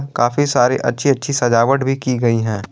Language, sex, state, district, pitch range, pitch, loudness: Hindi, male, Jharkhand, Garhwa, 120-135 Hz, 125 Hz, -16 LUFS